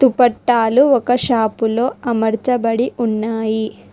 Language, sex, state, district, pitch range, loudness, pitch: Telugu, female, Telangana, Hyderabad, 225-245 Hz, -16 LUFS, 235 Hz